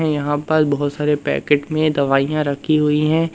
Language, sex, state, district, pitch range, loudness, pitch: Hindi, male, Madhya Pradesh, Umaria, 145-155 Hz, -18 LUFS, 150 Hz